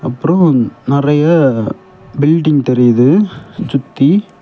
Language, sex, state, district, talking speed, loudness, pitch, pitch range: Tamil, male, Tamil Nadu, Kanyakumari, 70 wpm, -12 LUFS, 145 Hz, 130-165 Hz